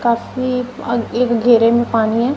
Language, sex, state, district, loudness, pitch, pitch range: Hindi, female, Punjab, Kapurthala, -16 LUFS, 235 Hz, 230-250 Hz